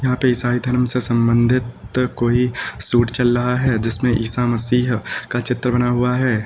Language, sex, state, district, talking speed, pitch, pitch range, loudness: Hindi, male, Uttar Pradesh, Lucknow, 175 wpm, 125 Hz, 120-125 Hz, -17 LUFS